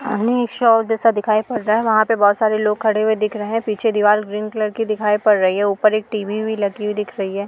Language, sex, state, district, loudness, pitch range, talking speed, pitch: Hindi, female, Uttar Pradesh, Jalaun, -18 LUFS, 210-220 Hz, 295 wpm, 215 Hz